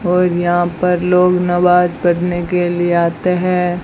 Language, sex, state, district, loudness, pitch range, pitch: Hindi, female, Rajasthan, Bikaner, -14 LUFS, 175-180 Hz, 180 Hz